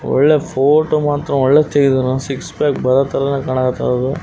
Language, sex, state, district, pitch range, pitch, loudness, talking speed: Kannada, male, Karnataka, Raichur, 130-145 Hz, 140 Hz, -15 LUFS, 130 wpm